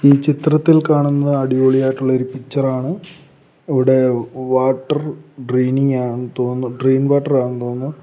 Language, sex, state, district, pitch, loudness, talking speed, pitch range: Malayalam, male, Kerala, Kollam, 130 Hz, -17 LUFS, 105 wpm, 130-145 Hz